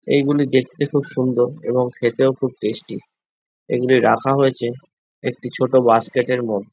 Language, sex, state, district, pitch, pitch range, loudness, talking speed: Bengali, male, West Bengal, Jhargram, 130 Hz, 125-135 Hz, -19 LUFS, 150 wpm